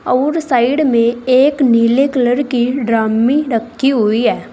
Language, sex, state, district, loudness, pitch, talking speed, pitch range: Hindi, female, Uttar Pradesh, Saharanpur, -13 LUFS, 250 Hz, 145 wpm, 235-275 Hz